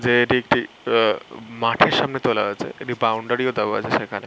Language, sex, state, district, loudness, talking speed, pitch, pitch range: Bengali, male, West Bengal, Malda, -21 LUFS, 180 wpm, 120 Hz, 115-125 Hz